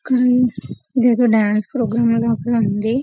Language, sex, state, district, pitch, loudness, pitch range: Telugu, female, Telangana, Karimnagar, 235 Hz, -17 LUFS, 220-250 Hz